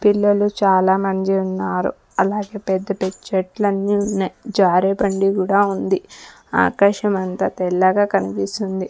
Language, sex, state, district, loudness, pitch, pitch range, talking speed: Telugu, female, Andhra Pradesh, Sri Satya Sai, -19 LUFS, 195 Hz, 190-205 Hz, 110 wpm